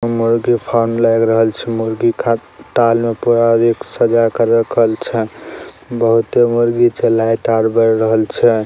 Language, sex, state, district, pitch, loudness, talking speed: Maithili, male, Bihar, Saharsa, 115 Hz, -14 LUFS, 160 wpm